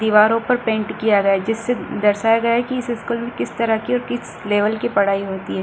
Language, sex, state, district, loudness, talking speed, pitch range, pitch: Hindi, female, Bihar, Kishanganj, -19 LUFS, 255 wpm, 205-235 Hz, 225 Hz